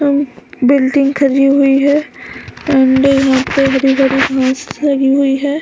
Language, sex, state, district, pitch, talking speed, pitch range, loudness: Hindi, female, Chhattisgarh, Balrampur, 275 Hz, 170 wpm, 270-280 Hz, -12 LUFS